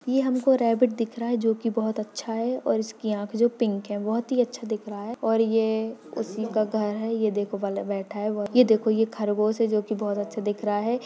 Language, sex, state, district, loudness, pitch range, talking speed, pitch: Hindi, male, Maharashtra, Dhule, -26 LUFS, 210-230 Hz, 245 wpm, 220 Hz